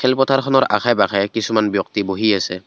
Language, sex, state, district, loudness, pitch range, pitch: Assamese, male, Assam, Kamrup Metropolitan, -17 LUFS, 100-130 Hz, 110 Hz